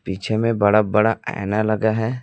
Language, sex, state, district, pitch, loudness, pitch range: Hindi, male, Chhattisgarh, Raipur, 110 Hz, -19 LUFS, 105-110 Hz